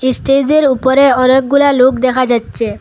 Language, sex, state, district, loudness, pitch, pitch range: Bengali, female, Assam, Hailakandi, -11 LUFS, 260 Hz, 255-275 Hz